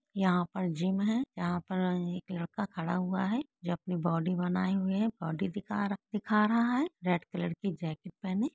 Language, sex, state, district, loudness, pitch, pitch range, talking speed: Hindi, female, West Bengal, Kolkata, -32 LUFS, 185 Hz, 175-210 Hz, 180 wpm